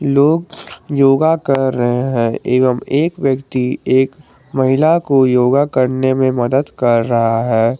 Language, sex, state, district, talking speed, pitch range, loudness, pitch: Hindi, male, Jharkhand, Garhwa, 140 wpm, 125-140 Hz, -15 LUFS, 130 Hz